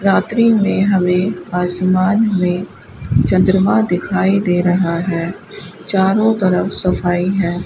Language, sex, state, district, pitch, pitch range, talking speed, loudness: Hindi, female, Rajasthan, Bikaner, 185 Hz, 180-200 Hz, 110 wpm, -15 LUFS